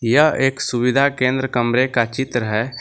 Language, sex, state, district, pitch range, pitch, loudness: Hindi, male, Jharkhand, Garhwa, 120-135 Hz, 125 Hz, -18 LUFS